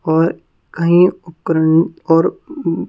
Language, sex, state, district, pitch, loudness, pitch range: Hindi, female, Punjab, Kapurthala, 170 Hz, -15 LUFS, 165-180 Hz